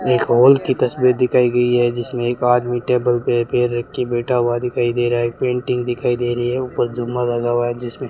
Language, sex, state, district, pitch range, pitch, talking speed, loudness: Hindi, male, Rajasthan, Bikaner, 120-125 Hz, 120 Hz, 250 wpm, -18 LUFS